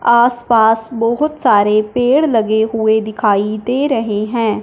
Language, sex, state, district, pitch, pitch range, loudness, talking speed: Hindi, male, Punjab, Fazilka, 225 Hz, 215-240 Hz, -14 LUFS, 140 wpm